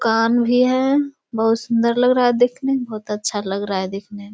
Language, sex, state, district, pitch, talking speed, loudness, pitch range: Hindi, female, Bihar, Samastipur, 230 Hz, 220 wpm, -19 LUFS, 210-250 Hz